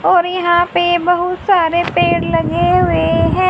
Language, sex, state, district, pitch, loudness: Hindi, female, Haryana, Jhajjar, 340 Hz, -14 LUFS